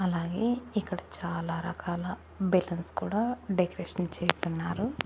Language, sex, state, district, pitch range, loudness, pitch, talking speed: Telugu, female, Andhra Pradesh, Annamaya, 175-205 Hz, -31 LUFS, 180 Hz, 95 wpm